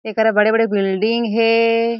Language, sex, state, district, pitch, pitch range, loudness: Chhattisgarhi, female, Chhattisgarh, Jashpur, 225 Hz, 215-230 Hz, -16 LUFS